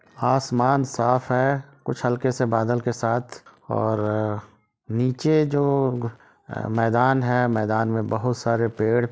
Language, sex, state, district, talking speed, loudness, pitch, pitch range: Hindi, male, Bihar, Sitamarhi, 130 wpm, -23 LUFS, 120 Hz, 115-130 Hz